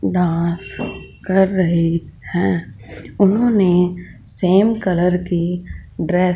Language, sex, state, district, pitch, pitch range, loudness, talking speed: Hindi, female, Punjab, Fazilka, 180 Hz, 170-185 Hz, -18 LUFS, 105 wpm